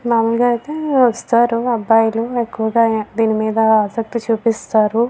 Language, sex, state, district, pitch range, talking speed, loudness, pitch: Telugu, female, Andhra Pradesh, Visakhapatnam, 220-240 Hz, 105 wpm, -16 LUFS, 230 Hz